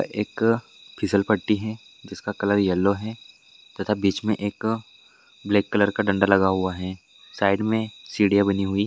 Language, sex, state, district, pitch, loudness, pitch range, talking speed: Hindi, male, Bihar, Supaul, 100 Hz, -23 LUFS, 100-110 Hz, 160 wpm